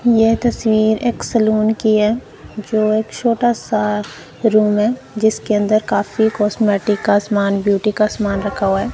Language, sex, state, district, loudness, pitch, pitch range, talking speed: Hindi, female, Punjab, Kapurthala, -16 LUFS, 215 Hz, 210-220 Hz, 160 wpm